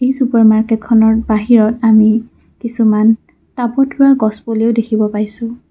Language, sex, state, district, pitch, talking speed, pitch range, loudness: Assamese, female, Assam, Kamrup Metropolitan, 225 Hz, 125 wpm, 220-235 Hz, -12 LUFS